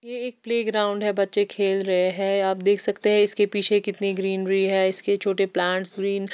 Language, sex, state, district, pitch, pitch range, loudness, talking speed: Hindi, female, Bihar, West Champaran, 200 Hz, 195-205 Hz, -19 LUFS, 210 wpm